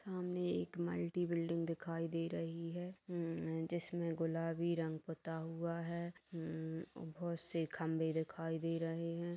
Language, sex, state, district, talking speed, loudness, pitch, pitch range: Hindi, female, Bihar, Bhagalpur, 145 wpm, -42 LUFS, 165 Hz, 160-170 Hz